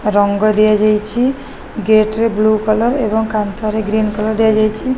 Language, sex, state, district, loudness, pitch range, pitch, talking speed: Odia, female, Odisha, Khordha, -14 LUFS, 215-220 Hz, 215 Hz, 145 wpm